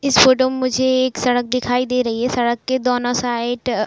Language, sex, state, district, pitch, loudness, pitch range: Hindi, female, Uttar Pradesh, Jalaun, 250 Hz, -18 LUFS, 245-255 Hz